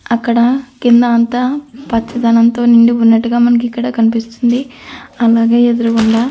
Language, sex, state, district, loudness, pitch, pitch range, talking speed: Telugu, female, Andhra Pradesh, Anantapur, -12 LUFS, 235 Hz, 230-240 Hz, 95 wpm